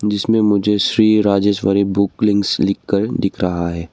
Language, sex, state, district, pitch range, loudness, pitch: Hindi, male, Arunachal Pradesh, Longding, 95-105 Hz, -16 LUFS, 100 Hz